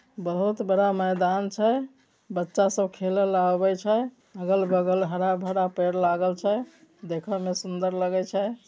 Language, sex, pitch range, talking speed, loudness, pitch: Maithili, male, 185-205 Hz, 145 wpm, -25 LUFS, 190 Hz